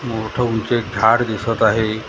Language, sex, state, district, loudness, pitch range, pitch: Marathi, male, Maharashtra, Gondia, -18 LUFS, 110-120 Hz, 110 Hz